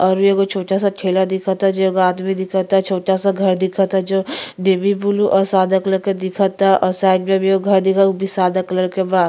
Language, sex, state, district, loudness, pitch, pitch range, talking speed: Bhojpuri, female, Uttar Pradesh, Ghazipur, -16 LUFS, 190 Hz, 190-195 Hz, 225 wpm